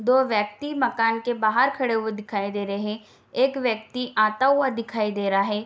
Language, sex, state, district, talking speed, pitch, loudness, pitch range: Hindi, female, Bihar, Darbhanga, 190 wpm, 225 Hz, -24 LUFS, 210-250 Hz